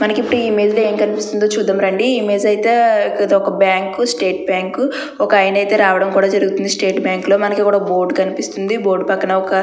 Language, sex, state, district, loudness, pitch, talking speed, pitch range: Telugu, female, Andhra Pradesh, Chittoor, -15 LUFS, 200 Hz, 205 wpm, 195-215 Hz